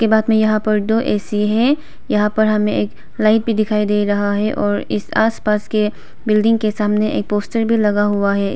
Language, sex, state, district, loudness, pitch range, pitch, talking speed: Hindi, female, Arunachal Pradesh, Papum Pare, -17 LUFS, 205-220 Hz, 210 Hz, 210 wpm